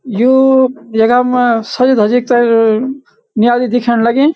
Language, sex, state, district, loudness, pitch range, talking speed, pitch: Garhwali, male, Uttarakhand, Uttarkashi, -11 LUFS, 230-260 Hz, 110 wpm, 245 Hz